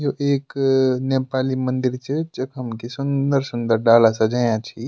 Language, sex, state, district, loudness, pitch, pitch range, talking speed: Garhwali, male, Uttarakhand, Tehri Garhwal, -20 LUFS, 130 Hz, 120-135 Hz, 145 wpm